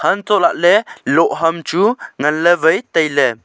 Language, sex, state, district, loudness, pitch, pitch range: Wancho, male, Arunachal Pradesh, Longding, -15 LUFS, 165 Hz, 155-190 Hz